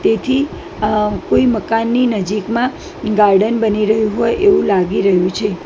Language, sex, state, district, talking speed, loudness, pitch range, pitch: Gujarati, female, Gujarat, Gandhinagar, 140 wpm, -15 LUFS, 205-235 Hz, 215 Hz